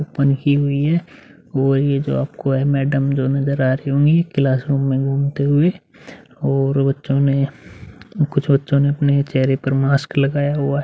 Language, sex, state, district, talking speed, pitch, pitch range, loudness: Hindi, male, Uttar Pradesh, Muzaffarnagar, 150 wpm, 140 Hz, 135-140 Hz, -18 LUFS